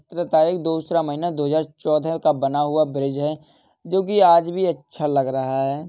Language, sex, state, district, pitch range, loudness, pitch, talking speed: Hindi, male, Uttar Pradesh, Jalaun, 145-170 Hz, -21 LUFS, 155 Hz, 205 wpm